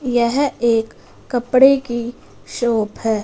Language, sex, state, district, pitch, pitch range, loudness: Hindi, female, Punjab, Fazilka, 240 Hz, 230-255 Hz, -17 LUFS